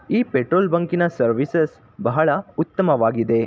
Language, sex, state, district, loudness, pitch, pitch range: Kannada, male, Karnataka, Shimoga, -20 LUFS, 160 Hz, 120-175 Hz